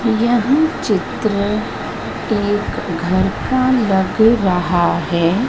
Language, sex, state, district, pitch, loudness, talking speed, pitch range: Hindi, female, Madhya Pradesh, Dhar, 205 Hz, -17 LUFS, 85 wpm, 185-235 Hz